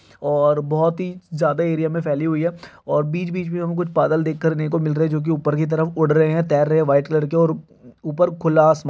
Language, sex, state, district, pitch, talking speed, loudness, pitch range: Hindi, male, Chhattisgarh, Kabirdham, 160 Hz, 295 wpm, -20 LUFS, 155-165 Hz